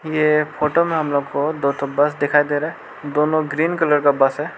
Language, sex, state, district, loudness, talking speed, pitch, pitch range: Hindi, male, Arunachal Pradesh, Lower Dibang Valley, -19 LUFS, 235 wpm, 150 Hz, 145-155 Hz